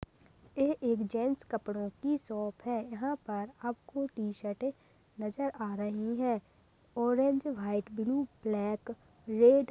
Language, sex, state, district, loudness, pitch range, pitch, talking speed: Hindi, male, Chhattisgarh, Sarguja, -34 LUFS, 210-265 Hz, 230 Hz, 135 wpm